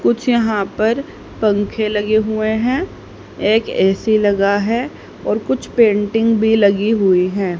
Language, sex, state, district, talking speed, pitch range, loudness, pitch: Hindi, female, Haryana, Rohtak, 140 wpm, 205-225 Hz, -16 LUFS, 215 Hz